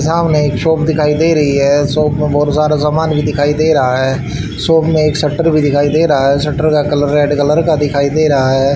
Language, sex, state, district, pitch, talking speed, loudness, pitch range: Hindi, male, Haryana, Charkhi Dadri, 150 Hz, 245 wpm, -12 LUFS, 145-155 Hz